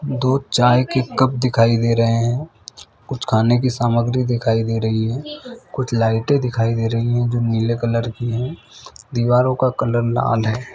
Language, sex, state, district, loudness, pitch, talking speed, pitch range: Hindi, male, Chhattisgarh, Bilaspur, -18 LUFS, 120 Hz, 180 wpm, 115-130 Hz